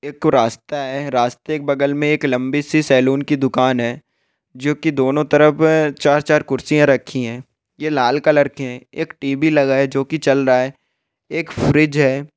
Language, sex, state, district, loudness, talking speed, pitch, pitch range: Hindi, male, Bihar, Bhagalpur, -17 LUFS, 185 wpm, 140 Hz, 130-150 Hz